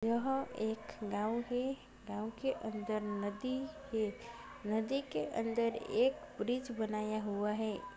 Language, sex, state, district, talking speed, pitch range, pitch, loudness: Hindi, female, Chhattisgarh, Raigarh, 135 wpm, 215-255 Hz, 225 Hz, -38 LUFS